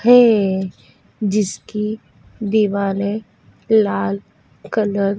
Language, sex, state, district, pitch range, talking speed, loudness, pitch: Hindi, female, Madhya Pradesh, Dhar, 190-215 Hz, 70 wpm, -18 LUFS, 205 Hz